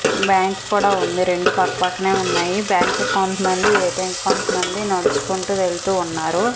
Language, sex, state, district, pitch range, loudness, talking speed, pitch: Telugu, female, Andhra Pradesh, Manyam, 180-195 Hz, -19 LUFS, 165 wpm, 185 Hz